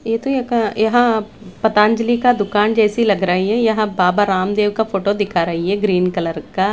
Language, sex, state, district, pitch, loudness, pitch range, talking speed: Hindi, female, Chandigarh, Chandigarh, 210 Hz, -16 LUFS, 190-225 Hz, 195 wpm